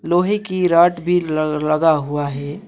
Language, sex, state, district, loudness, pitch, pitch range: Hindi, male, West Bengal, Alipurduar, -17 LUFS, 165 Hz, 150-180 Hz